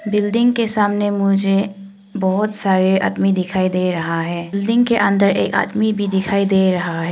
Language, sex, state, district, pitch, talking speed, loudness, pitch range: Hindi, female, Arunachal Pradesh, Longding, 195 Hz, 175 wpm, -17 LUFS, 190-210 Hz